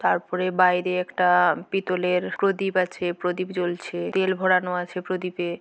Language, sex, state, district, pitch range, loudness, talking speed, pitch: Bengali, female, West Bengal, Jhargram, 180-185 Hz, -24 LUFS, 130 wpm, 180 Hz